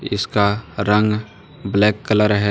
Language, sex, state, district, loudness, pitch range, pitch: Hindi, male, Jharkhand, Deoghar, -18 LUFS, 100-105 Hz, 105 Hz